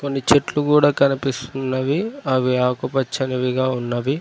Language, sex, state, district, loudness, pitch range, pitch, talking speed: Telugu, male, Telangana, Mahabubabad, -20 LUFS, 125-140 Hz, 135 Hz, 100 wpm